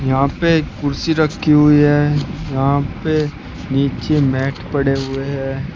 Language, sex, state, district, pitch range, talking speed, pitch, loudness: Hindi, male, Uttar Pradesh, Shamli, 135-150 Hz, 135 wpm, 140 Hz, -17 LUFS